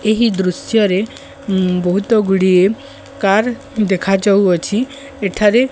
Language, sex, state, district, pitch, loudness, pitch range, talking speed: Odia, female, Odisha, Sambalpur, 205 Hz, -15 LUFS, 190-225 Hz, 105 wpm